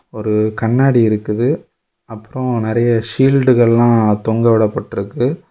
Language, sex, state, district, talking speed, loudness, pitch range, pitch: Tamil, male, Tamil Nadu, Kanyakumari, 75 wpm, -15 LUFS, 110-125 Hz, 115 Hz